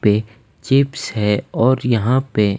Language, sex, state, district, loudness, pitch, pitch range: Hindi, male, Himachal Pradesh, Shimla, -18 LUFS, 115 Hz, 105-130 Hz